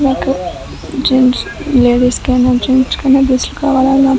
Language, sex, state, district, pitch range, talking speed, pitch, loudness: Telugu, male, Andhra Pradesh, Guntur, 250-270 Hz, 145 wpm, 260 Hz, -12 LUFS